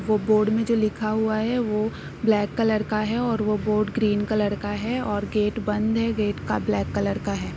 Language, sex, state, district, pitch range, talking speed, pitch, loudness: Hindi, female, Bihar, East Champaran, 205-220 Hz, 230 wpm, 215 Hz, -24 LUFS